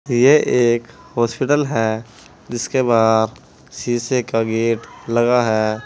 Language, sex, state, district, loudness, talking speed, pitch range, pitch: Hindi, male, Uttar Pradesh, Saharanpur, -18 LUFS, 110 wpm, 110-125 Hz, 115 Hz